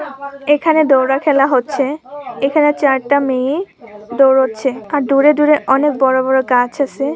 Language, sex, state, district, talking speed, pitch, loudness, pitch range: Bengali, female, West Bengal, Purulia, 125 wpm, 275 Hz, -14 LUFS, 265-295 Hz